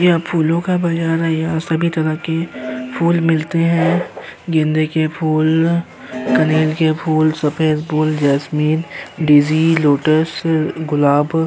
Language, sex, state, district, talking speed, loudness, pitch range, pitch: Hindi, male, Uttar Pradesh, Jyotiba Phule Nagar, 130 wpm, -16 LUFS, 155-165 Hz, 160 Hz